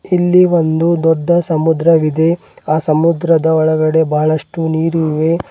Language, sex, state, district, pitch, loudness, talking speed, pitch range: Kannada, male, Karnataka, Bidar, 160 Hz, -13 LUFS, 110 wpm, 155-170 Hz